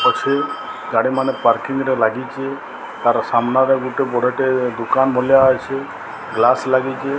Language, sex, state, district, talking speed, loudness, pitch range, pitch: Odia, male, Odisha, Sambalpur, 135 wpm, -18 LUFS, 130-135 Hz, 135 Hz